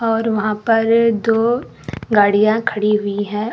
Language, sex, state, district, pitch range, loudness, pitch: Hindi, female, Karnataka, Koppal, 210-230 Hz, -16 LUFS, 220 Hz